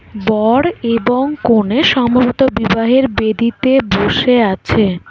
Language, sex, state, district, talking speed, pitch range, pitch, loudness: Bengali, female, West Bengal, Alipurduar, 95 wpm, 220-260 Hz, 235 Hz, -13 LUFS